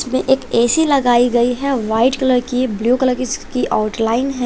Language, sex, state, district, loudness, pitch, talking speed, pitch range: Hindi, female, Chhattisgarh, Raipur, -16 LUFS, 250 Hz, 200 wpm, 240-260 Hz